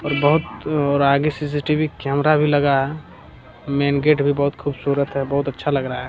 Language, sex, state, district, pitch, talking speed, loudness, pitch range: Hindi, male, Bihar, Jamui, 140 Hz, 195 wpm, -19 LUFS, 140-150 Hz